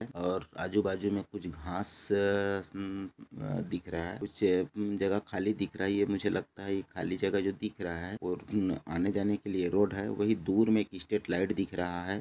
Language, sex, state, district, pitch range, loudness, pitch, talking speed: Hindi, male, Chhattisgarh, Bilaspur, 90-100 Hz, -33 LUFS, 100 Hz, 140 wpm